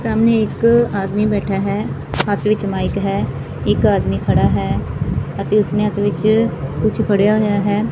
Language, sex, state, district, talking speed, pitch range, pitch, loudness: Punjabi, female, Punjab, Fazilka, 160 wpm, 195-215 Hz, 205 Hz, -17 LUFS